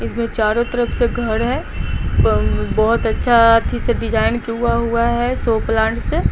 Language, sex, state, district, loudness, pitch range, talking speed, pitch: Hindi, female, Bihar, Patna, -17 LUFS, 225-235 Hz, 160 wpm, 235 Hz